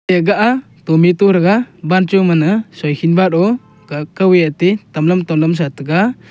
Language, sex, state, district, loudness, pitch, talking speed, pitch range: Wancho, male, Arunachal Pradesh, Longding, -13 LUFS, 180 Hz, 180 wpm, 165-195 Hz